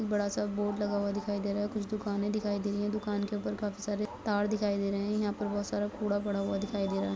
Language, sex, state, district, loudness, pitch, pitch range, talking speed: Hindi, female, Bihar, Begusarai, -33 LUFS, 205 Hz, 200-210 Hz, 310 wpm